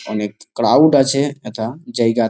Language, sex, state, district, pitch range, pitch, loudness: Bengali, male, West Bengal, Jalpaiguri, 110-135 Hz, 115 Hz, -17 LUFS